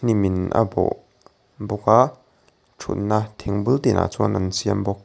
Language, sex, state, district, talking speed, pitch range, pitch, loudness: Mizo, male, Mizoram, Aizawl, 145 wpm, 100-110 Hz, 105 Hz, -21 LUFS